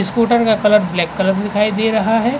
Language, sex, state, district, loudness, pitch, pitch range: Hindi, male, Uttar Pradesh, Jalaun, -15 LUFS, 210 Hz, 195-225 Hz